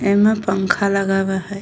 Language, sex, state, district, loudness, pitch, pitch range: Bhojpuri, female, Uttar Pradesh, Deoria, -18 LUFS, 195 Hz, 195-200 Hz